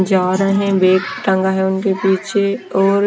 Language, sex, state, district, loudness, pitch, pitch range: Hindi, female, Himachal Pradesh, Shimla, -16 LUFS, 190 Hz, 190-195 Hz